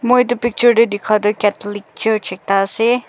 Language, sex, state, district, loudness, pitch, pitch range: Nagamese, female, Nagaland, Kohima, -16 LUFS, 215 Hz, 205-240 Hz